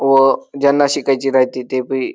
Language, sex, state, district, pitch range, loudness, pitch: Marathi, male, Maharashtra, Dhule, 130-140 Hz, -15 LUFS, 135 Hz